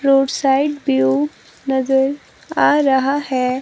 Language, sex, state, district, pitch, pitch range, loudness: Hindi, female, Himachal Pradesh, Shimla, 270 Hz, 260-280 Hz, -17 LUFS